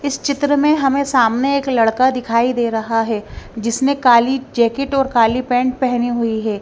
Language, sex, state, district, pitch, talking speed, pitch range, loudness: Hindi, female, Punjab, Kapurthala, 245 Hz, 180 wpm, 230-270 Hz, -16 LUFS